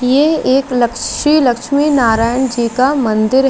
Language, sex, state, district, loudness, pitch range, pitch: Hindi, female, Chandigarh, Chandigarh, -13 LUFS, 235-275 Hz, 260 Hz